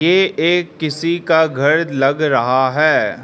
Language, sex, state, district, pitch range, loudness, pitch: Hindi, male, Arunachal Pradesh, Lower Dibang Valley, 140-170 Hz, -15 LUFS, 155 Hz